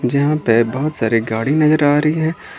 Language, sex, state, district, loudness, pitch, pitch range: Hindi, male, Jharkhand, Ranchi, -16 LUFS, 145 Hz, 115-150 Hz